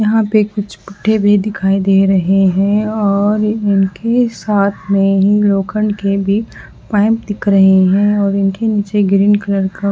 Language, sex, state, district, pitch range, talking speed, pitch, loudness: Hindi, female, Haryana, Charkhi Dadri, 195-210 Hz, 170 wpm, 200 Hz, -13 LUFS